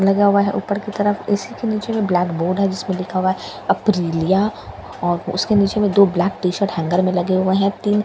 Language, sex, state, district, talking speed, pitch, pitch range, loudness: Hindi, female, Bihar, Katihar, 245 wpm, 195 Hz, 180-205 Hz, -19 LUFS